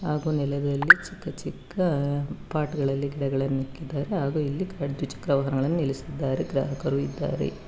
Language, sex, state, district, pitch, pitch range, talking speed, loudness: Kannada, female, Karnataka, Bangalore, 140 Hz, 135-150 Hz, 125 wpm, -26 LUFS